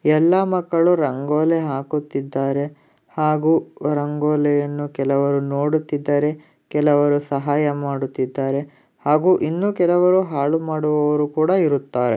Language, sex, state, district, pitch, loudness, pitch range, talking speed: Kannada, male, Karnataka, Dakshina Kannada, 150 Hz, -20 LUFS, 140-155 Hz, 90 wpm